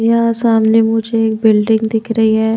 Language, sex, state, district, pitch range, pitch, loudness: Hindi, female, Maharashtra, Washim, 220-225 Hz, 225 Hz, -13 LUFS